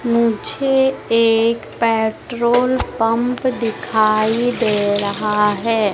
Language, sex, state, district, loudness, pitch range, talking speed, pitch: Hindi, female, Madhya Pradesh, Dhar, -17 LUFS, 215-240 Hz, 80 wpm, 230 Hz